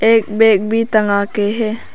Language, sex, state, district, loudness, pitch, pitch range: Hindi, female, Arunachal Pradesh, Papum Pare, -15 LUFS, 220 Hz, 205-225 Hz